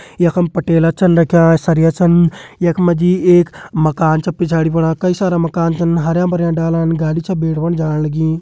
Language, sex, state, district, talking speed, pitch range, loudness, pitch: Hindi, male, Uttarakhand, Uttarkashi, 180 wpm, 165-175 Hz, -14 LUFS, 170 Hz